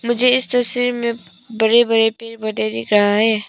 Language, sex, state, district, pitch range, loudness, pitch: Hindi, female, Arunachal Pradesh, Papum Pare, 215-240 Hz, -16 LUFS, 230 Hz